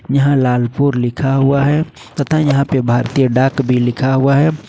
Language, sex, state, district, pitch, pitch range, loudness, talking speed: Hindi, male, Jharkhand, Ranchi, 135 Hz, 125-140 Hz, -14 LUFS, 180 wpm